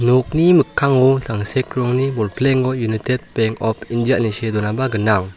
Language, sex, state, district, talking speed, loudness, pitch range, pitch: Garo, male, Meghalaya, South Garo Hills, 145 wpm, -17 LUFS, 110-130 Hz, 125 Hz